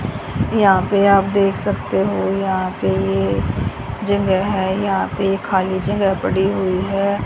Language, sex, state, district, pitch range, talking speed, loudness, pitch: Hindi, female, Haryana, Jhajjar, 185-195 Hz, 155 wpm, -18 LUFS, 195 Hz